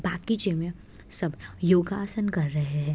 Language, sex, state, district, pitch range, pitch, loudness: Hindi, female, Uttar Pradesh, Deoria, 150-195 Hz, 175 Hz, -27 LUFS